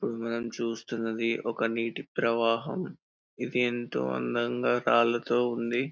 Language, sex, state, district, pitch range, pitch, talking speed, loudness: Telugu, male, Telangana, Karimnagar, 115-120 Hz, 115 Hz, 110 wpm, -29 LUFS